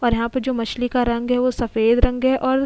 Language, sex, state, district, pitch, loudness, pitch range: Hindi, female, Goa, North and South Goa, 245 Hz, -20 LUFS, 235-260 Hz